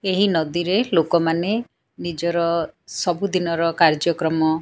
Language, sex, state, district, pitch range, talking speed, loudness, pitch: Odia, female, Odisha, Sambalpur, 165-180 Hz, 115 wpm, -20 LUFS, 170 Hz